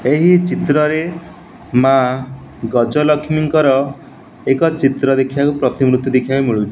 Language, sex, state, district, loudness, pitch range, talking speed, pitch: Odia, male, Odisha, Nuapada, -15 LUFS, 130-150 Hz, 100 wpm, 135 Hz